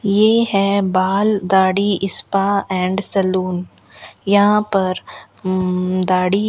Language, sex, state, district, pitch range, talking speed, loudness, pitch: Hindi, female, Rajasthan, Bikaner, 185-200 Hz, 110 wpm, -17 LUFS, 195 Hz